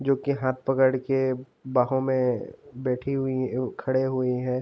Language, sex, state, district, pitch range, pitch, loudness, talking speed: Hindi, male, Uttar Pradesh, Jalaun, 125-135 Hz, 130 Hz, -26 LUFS, 145 wpm